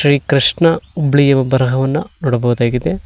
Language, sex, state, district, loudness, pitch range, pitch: Kannada, male, Karnataka, Koppal, -14 LUFS, 125-145 Hz, 135 Hz